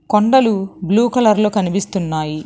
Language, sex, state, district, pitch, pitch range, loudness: Telugu, female, Telangana, Hyderabad, 200 Hz, 180-220 Hz, -16 LUFS